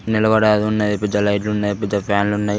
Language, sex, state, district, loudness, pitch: Telugu, male, Telangana, Karimnagar, -18 LUFS, 105 Hz